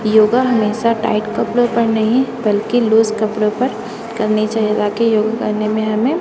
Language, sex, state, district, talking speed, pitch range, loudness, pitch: Hindi, female, Chhattisgarh, Raipur, 165 wpm, 215-230 Hz, -16 LUFS, 220 Hz